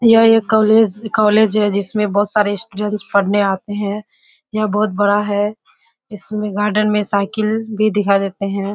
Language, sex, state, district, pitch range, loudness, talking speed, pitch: Hindi, female, Bihar, Kishanganj, 205-215 Hz, -16 LUFS, 170 wpm, 210 Hz